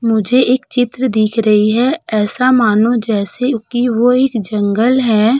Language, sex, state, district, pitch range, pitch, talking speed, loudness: Hindi, female, Uttar Pradesh, Budaun, 215-250 Hz, 235 Hz, 155 wpm, -13 LUFS